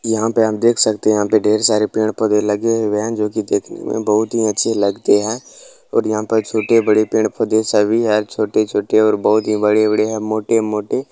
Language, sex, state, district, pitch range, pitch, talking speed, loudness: Hindi, male, Bihar, Gopalganj, 105-110 Hz, 110 Hz, 205 wpm, -16 LUFS